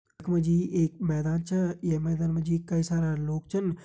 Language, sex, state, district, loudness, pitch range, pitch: Hindi, male, Uttarakhand, Tehri Garhwal, -28 LUFS, 160-175 Hz, 165 Hz